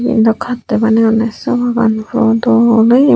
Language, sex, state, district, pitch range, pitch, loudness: Chakma, female, Tripura, Unakoti, 225-240 Hz, 230 Hz, -12 LUFS